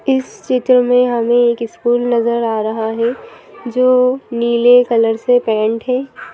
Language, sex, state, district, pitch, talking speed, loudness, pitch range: Hindi, female, Madhya Pradesh, Bhopal, 240 Hz, 150 wpm, -14 LUFS, 230-250 Hz